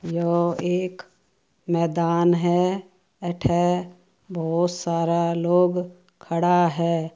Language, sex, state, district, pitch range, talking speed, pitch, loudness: Marwari, female, Rajasthan, Churu, 170-180 Hz, 85 wpm, 175 Hz, -23 LUFS